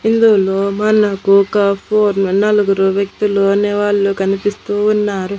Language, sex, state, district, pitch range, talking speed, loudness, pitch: Telugu, female, Andhra Pradesh, Annamaya, 195-210 Hz, 110 wpm, -14 LUFS, 200 Hz